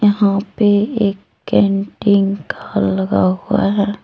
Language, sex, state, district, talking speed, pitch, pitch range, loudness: Hindi, female, Jharkhand, Deoghar, 120 wpm, 200 Hz, 195-205 Hz, -16 LUFS